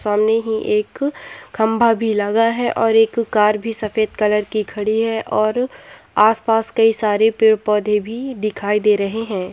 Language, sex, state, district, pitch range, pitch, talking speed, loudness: Hindi, female, Bihar, Gopalganj, 210-225 Hz, 220 Hz, 155 wpm, -17 LUFS